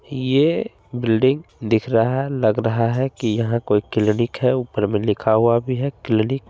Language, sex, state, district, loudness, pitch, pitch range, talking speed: Hindi, male, Bihar, Gopalganj, -20 LUFS, 115 Hz, 110-130 Hz, 195 wpm